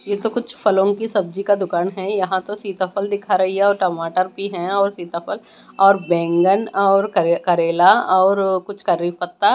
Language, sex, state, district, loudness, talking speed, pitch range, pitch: Hindi, female, Odisha, Malkangiri, -18 LUFS, 180 wpm, 180-205 Hz, 195 Hz